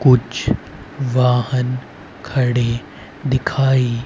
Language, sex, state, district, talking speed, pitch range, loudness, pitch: Hindi, male, Haryana, Rohtak, 60 wpm, 120-130 Hz, -19 LUFS, 125 Hz